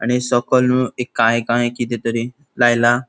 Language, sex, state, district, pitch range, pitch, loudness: Konkani, male, Goa, North and South Goa, 120-125 Hz, 120 Hz, -17 LUFS